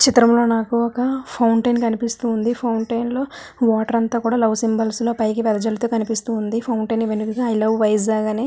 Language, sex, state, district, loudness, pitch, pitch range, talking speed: Telugu, female, Andhra Pradesh, Visakhapatnam, -19 LUFS, 230 Hz, 220-235 Hz, 175 wpm